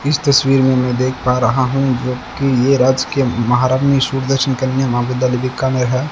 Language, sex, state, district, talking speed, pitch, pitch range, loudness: Hindi, male, Rajasthan, Bikaner, 165 wpm, 130 Hz, 125-135 Hz, -15 LUFS